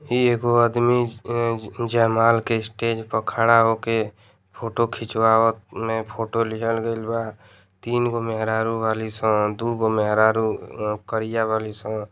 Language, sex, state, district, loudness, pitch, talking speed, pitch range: Bhojpuri, male, Uttar Pradesh, Deoria, -22 LUFS, 115 Hz, 140 wpm, 110-115 Hz